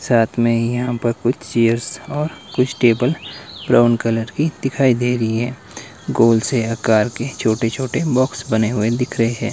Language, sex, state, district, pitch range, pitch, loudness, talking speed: Hindi, male, Himachal Pradesh, Shimla, 115-130 Hz, 120 Hz, -18 LUFS, 180 wpm